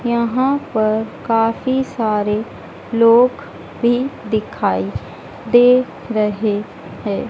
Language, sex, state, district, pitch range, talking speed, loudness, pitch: Hindi, female, Madhya Pradesh, Dhar, 215-250 Hz, 80 wpm, -17 LUFS, 230 Hz